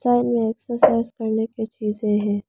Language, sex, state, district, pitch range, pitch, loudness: Hindi, female, Arunachal Pradesh, Lower Dibang Valley, 215-240 Hz, 225 Hz, -21 LUFS